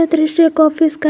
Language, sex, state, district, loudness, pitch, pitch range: Hindi, female, Jharkhand, Garhwa, -13 LUFS, 320 Hz, 310-325 Hz